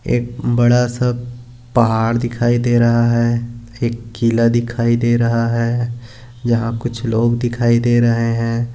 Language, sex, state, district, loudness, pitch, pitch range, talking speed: Hindi, male, Maharashtra, Aurangabad, -17 LUFS, 120 Hz, 115-120 Hz, 135 wpm